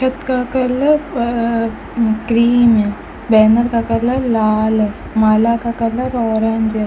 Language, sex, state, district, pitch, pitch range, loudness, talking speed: Hindi, female, Rajasthan, Bikaner, 230 Hz, 220-245 Hz, -15 LUFS, 140 wpm